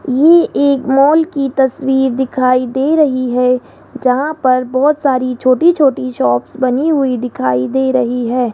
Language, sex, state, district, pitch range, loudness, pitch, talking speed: Hindi, female, Rajasthan, Jaipur, 255-280 Hz, -13 LUFS, 265 Hz, 155 wpm